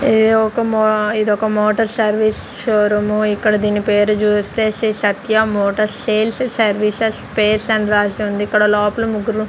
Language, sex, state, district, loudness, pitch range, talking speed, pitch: Telugu, female, Andhra Pradesh, Sri Satya Sai, -16 LUFS, 210-220 Hz, 160 wpm, 215 Hz